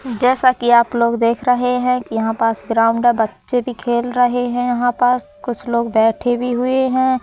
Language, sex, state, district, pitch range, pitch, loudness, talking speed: Hindi, female, Madhya Pradesh, Katni, 235-250 Hz, 245 Hz, -17 LUFS, 205 wpm